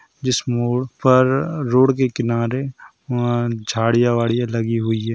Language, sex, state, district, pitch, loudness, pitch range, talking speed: Hindi, male, Bihar, Sitamarhi, 120 Hz, -19 LUFS, 115-130 Hz, 140 wpm